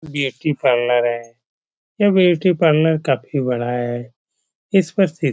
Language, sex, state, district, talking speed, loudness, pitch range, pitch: Hindi, male, Uttar Pradesh, Etah, 145 wpm, -18 LUFS, 125-170 Hz, 140 Hz